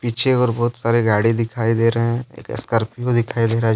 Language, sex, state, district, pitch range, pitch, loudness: Hindi, male, Jharkhand, Deoghar, 115-120 Hz, 115 Hz, -19 LUFS